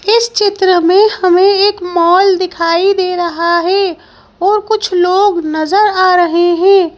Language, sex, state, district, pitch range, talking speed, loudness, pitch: Hindi, female, Madhya Pradesh, Bhopal, 345-395 Hz, 145 wpm, -11 LUFS, 370 Hz